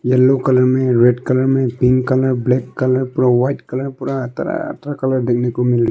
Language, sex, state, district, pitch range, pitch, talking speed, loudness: Hindi, male, Arunachal Pradesh, Longding, 125-130 Hz, 130 Hz, 195 wpm, -16 LUFS